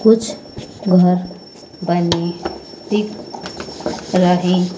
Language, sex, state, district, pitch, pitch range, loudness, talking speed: Hindi, female, Madhya Pradesh, Dhar, 180 Hz, 180-205 Hz, -18 LUFS, 65 wpm